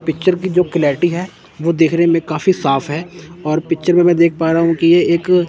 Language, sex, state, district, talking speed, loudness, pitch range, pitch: Hindi, male, Chandigarh, Chandigarh, 230 wpm, -15 LUFS, 160-175 Hz, 170 Hz